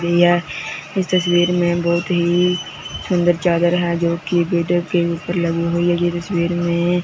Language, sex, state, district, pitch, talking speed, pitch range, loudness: Hindi, male, Punjab, Fazilka, 175 Hz, 160 wpm, 170-175 Hz, -18 LUFS